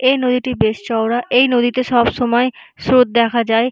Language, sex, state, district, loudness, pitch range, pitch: Bengali, female, West Bengal, North 24 Parganas, -15 LUFS, 230-255 Hz, 245 Hz